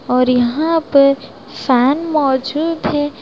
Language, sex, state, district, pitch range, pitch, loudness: Hindi, female, Bihar, Sitamarhi, 260-305 Hz, 280 Hz, -15 LUFS